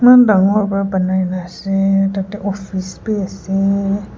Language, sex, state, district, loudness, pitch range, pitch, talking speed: Nagamese, female, Nagaland, Kohima, -16 LUFS, 190-200 Hz, 195 Hz, 130 wpm